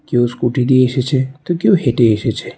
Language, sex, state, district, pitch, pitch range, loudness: Bengali, male, Tripura, West Tripura, 130 Hz, 120-135 Hz, -15 LUFS